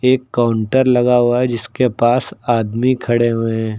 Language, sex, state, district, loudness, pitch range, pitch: Hindi, male, Uttar Pradesh, Lucknow, -16 LUFS, 115-125 Hz, 120 Hz